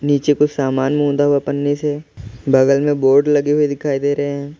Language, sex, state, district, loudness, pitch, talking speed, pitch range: Hindi, male, Uttar Pradesh, Lalitpur, -16 LUFS, 145 Hz, 210 wpm, 140-145 Hz